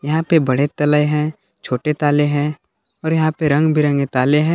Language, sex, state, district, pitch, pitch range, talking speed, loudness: Hindi, male, Jharkhand, Palamu, 150 Hz, 145-155 Hz, 195 wpm, -17 LUFS